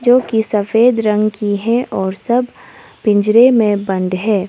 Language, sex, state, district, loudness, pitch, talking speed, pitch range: Hindi, female, Arunachal Pradesh, Lower Dibang Valley, -14 LUFS, 215 Hz, 160 wpm, 205-240 Hz